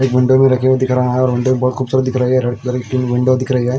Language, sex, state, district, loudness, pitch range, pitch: Hindi, male, Punjab, Fazilka, -15 LUFS, 125-130 Hz, 130 Hz